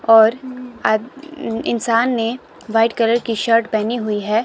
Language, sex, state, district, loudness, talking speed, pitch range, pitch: Hindi, female, Himachal Pradesh, Shimla, -18 LUFS, 150 wpm, 225-245 Hz, 230 Hz